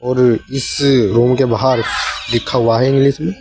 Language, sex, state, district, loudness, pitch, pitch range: Hindi, male, Uttar Pradesh, Saharanpur, -14 LUFS, 125 Hz, 120-135 Hz